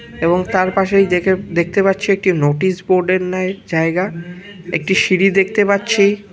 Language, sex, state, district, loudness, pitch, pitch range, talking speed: Bengali, male, West Bengal, Malda, -15 LUFS, 185 Hz, 180-195 Hz, 150 wpm